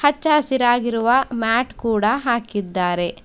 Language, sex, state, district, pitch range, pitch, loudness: Kannada, female, Karnataka, Bidar, 220-260 Hz, 235 Hz, -19 LUFS